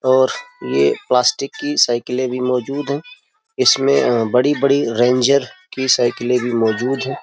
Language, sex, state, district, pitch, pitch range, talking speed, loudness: Hindi, male, Uttar Pradesh, Jyotiba Phule Nagar, 130 Hz, 120-140 Hz, 150 wpm, -17 LUFS